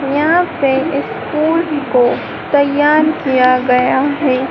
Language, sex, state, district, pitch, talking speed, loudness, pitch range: Hindi, female, Madhya Pradesh, Dhar, 285 Hz, 120 wpm, -14 LUFS, 260-305 Hz